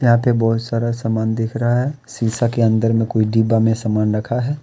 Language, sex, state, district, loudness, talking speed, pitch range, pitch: Hindi, male, Jharkhand, Deoghar, -18 LUFS, 235 wpm, 110-120 Hz, 115 Hz